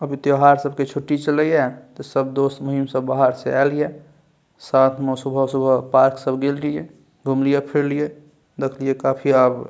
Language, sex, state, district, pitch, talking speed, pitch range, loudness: Maithili, male, Bihar, Saharsa, 140 Hz, 175 wpm, 135-145 Hz, -19 LUFS